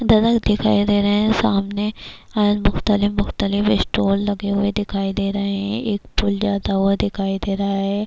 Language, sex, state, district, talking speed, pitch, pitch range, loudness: Urdu, female, Bihar, Kishanganj, 170 wpm, 205 Hz, 200-210 Hz, -19 LUFS